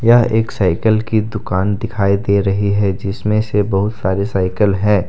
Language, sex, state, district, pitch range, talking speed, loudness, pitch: Hindi, male, Jharkhand, Deoghar, 100-110 Hz, 175 wpm, -16 LUFS, 100 Hz